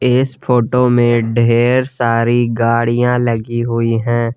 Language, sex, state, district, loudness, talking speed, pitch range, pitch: Hindi, male, Jharkhand, Garhwa, -14 LUFS, 125 wpm, 115-125 Hz, 120 Hz